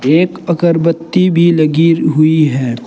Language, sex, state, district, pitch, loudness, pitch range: Hindi, male, Uttar Pradesh, Saharanpur, 165 Hz, -12 LUFS, 155-170 Hz